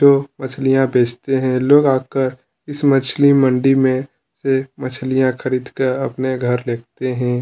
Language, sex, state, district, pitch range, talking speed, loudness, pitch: Hindi, male, Chhattisgarh, Kabirdham, 130-135 Hz, 145 wpm, -17 LUFS, 130 Hz